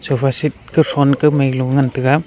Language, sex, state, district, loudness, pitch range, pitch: Wancho, male, Arunachal Pradesh, Longding, -15 LUFS, 130-150 Hz, 140 Hz